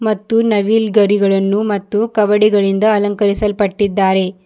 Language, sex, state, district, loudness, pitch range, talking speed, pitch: Kannada, female, Karnataka, Bidar, -14 LUFS, 200-215 Hz, 65 wpm, 205 Hz